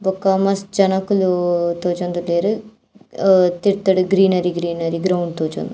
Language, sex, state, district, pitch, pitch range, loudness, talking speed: Tulu, female, Karnataka, Dakshina Kannada, 185 Hz, 175-195 Hz, -18 LUFS, 105 wpm